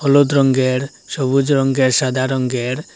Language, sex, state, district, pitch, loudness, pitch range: Bengali, male, Assam, Hailakandi, 130 Hz, -16 LUFS, 130-140 Hz